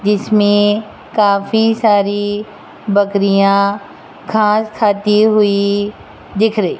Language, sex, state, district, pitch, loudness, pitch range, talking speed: Hindi, female, Rajasthan, Jaipur, 205 Hz, -14 LUFS, 200-215 Hz, 80 wpm